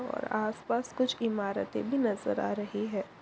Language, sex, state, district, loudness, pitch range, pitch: Hindi, male, Bihar, Begusarai, -32 LUFS, 210-255 Hz, 225 Hz